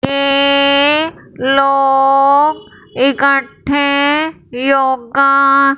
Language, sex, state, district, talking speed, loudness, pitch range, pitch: Hindi, female, Punjab, Fazilka, 40 wpm, -12 LUFS, 275-280 Hz, 275 Hz